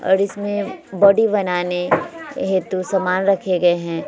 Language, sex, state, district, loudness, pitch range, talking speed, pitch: Hindi, female, Bihar, Vaishali, -18 LUFS, 180-205 Hz, 130 wpm, 190 Hz